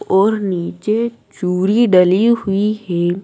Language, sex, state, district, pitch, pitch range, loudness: Hindi, female, Madhya Pradesh, Dhar, 195 Hz, 180-215 Hz, -16 LUFS